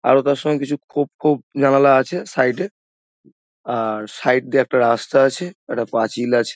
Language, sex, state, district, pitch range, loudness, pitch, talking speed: Bengali, male, West Bengal, Dakshin Dinajpur, 115-145 Hz, -18 LUFS, 135 Hz, 175 wpm